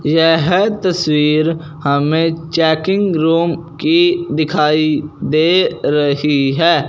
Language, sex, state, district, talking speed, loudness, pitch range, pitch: Hindi, male, Punjab, Fazilka, 85 wpm, -14 LUFS, 150-170 Hz, 160 Hz